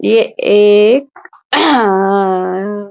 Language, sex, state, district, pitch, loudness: Hindi, female, Bihar, Muzaffarpur, 205 Hz, -11 LUFS